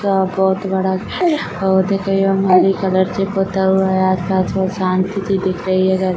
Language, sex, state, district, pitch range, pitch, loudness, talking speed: Hindi, female, Jharkhand, Sahebganj, 185-195 Hz, 190 Hz, -16 LUFS, 175 wpm